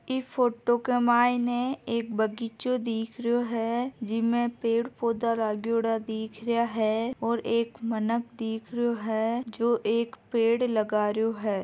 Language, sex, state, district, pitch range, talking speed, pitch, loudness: Marwari, female, Rajasthan, Nagaur, 225-240 Hz, 145 wpm, 230 Hz, -28 LUFS